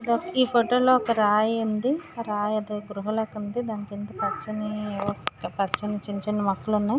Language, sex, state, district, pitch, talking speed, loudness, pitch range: Telugu, female, Andhra Pradesh, Srikakulam, 215 Hz, 170 wpm, -26 LUFS, 205-235 Hz